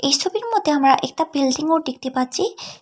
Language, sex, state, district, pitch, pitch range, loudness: Bengali, female, Tripura, Unakoti, 290 Hz, 265-375 Hz, -20 LUFS